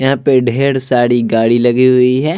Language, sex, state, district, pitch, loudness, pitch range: Hindi, male, Bihar, Vaishali, 125 Hz, -12 LUFS, 120-135 Hz